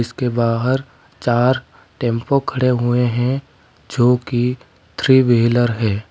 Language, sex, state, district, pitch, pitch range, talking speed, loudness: Hindi, male, Uttar Pradesh, Lalitpur, 120 Hz, 120-130 Hz, 120 wpm, -17 LUFS